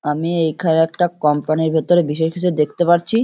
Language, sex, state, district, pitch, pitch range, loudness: Bengali, male, West Bengal, Kolkata, 160 Hz, 155-175 Hz, -17 LUFS